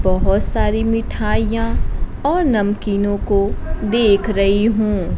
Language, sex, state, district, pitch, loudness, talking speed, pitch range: Hindi, female, Bihar, Kaimur, 210 Hz, -18 LUFS, 105 wpm, 200-225 Hz